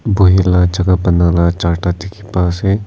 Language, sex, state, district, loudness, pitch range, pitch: Nagamese, male, Nagaland, Kohima, -13 LUFS, 85-95 Hz, 90 Hz